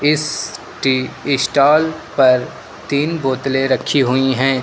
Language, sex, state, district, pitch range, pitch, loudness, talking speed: Hindi, male, Uttar Pradesh, Lucknow, 130-145 Hz, 135 Hz, -16 LUFS, 115 wpm